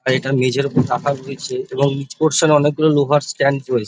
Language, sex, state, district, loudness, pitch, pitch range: Bengali, male, West Bengal, North 24 Parganas, -17 LUFS, 140 Hz, 135-150 Hz